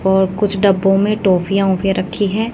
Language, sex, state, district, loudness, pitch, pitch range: Hindi, female, Haryana, Jhajjar, -15 LUFS, 195 Hz, 190-205 Hz